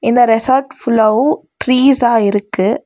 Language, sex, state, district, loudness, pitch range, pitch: Tamil, female, Tamil Nadu, Nilgiris, -13 LUFS, 220-260 Hz, 240 Hz